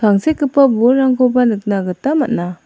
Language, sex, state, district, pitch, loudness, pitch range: Garo, female, Meghalaya, South Garo Hills, 250 Hz, -14 LUFS, 210-275 Hz